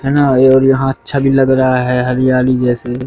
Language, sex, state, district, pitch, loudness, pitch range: Hindi, male, Madhya Pradesh, Katni, 130 Hz, -12 LUFS, 125-135 Hz